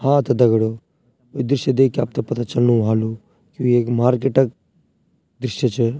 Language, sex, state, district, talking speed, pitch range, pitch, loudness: Garhwali, male, Uttarakhand, Tehri Garhwal, 170 wpm, 120-135 Hz, 125 Hz, -19 LUFS